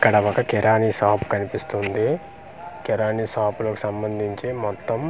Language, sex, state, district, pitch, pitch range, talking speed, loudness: Telugu, male, Andhra Pradesh, Manyam, 105 Hz, 105-110 Hz, 140 wpm, -23 LUFS